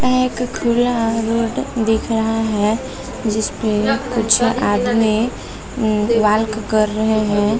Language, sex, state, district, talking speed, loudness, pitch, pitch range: Hindi, female, Chhattisgarh, Balrampur, 125 wpm, -17 LUFS, 225 Hz, 215-235 Hz